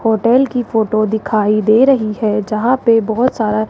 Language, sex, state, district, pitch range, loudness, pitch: Hindi, female, Rajasthan, Jaipur, 215-240 Hz, -14 LUFS, 220 Hz